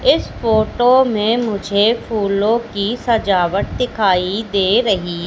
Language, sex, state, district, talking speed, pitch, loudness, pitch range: Hindi, female, Madhya Pradesh, Katni, 115 wpm, 215 Hz, -16 LUFS, 200-230 Hz